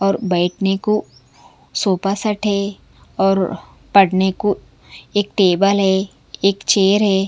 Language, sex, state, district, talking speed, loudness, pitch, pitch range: Hindi, female, Punjab, Kapurthala, 125 wpm, -17 LUFS, 195 Hz, 190-205 Hz